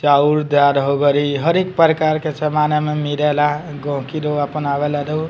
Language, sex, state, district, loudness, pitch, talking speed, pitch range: Bhojpuri, male, Bihar, Muzaffarpur, -17 LUFS, 150 Hz, 180 wpm, 145-155 Hz